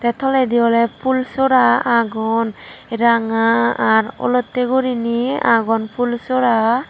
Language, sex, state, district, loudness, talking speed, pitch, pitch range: Chakma, female, Tripura, Dhalai, -17 LUFS, 95 wpm, 235 Hz, 225-255 Hz